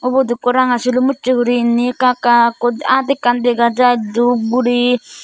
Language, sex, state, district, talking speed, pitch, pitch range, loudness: Chakma, female, Tripura, Dhalai, 160 wpm, 245 Hz, 240-250 Hz, -14 LUFS